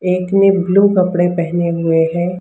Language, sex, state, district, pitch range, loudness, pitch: Hindi, female, Maharashtra, Mumbai Suburban, 170-185 Hz, -14 LUFS, 180 Hz